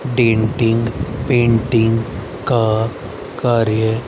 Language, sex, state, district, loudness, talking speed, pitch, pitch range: Hindi, male, Haryana, Rohtak, -17 LUFS, 60 wpm, 115 Hz, 110-120 Hz